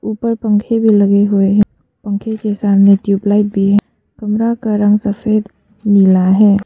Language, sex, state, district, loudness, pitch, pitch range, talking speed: Hindi, female, Arunachal Pradesh, Papum Pare, -13 LUFS, 205 Hz, 200-215 Hz, 160 wpm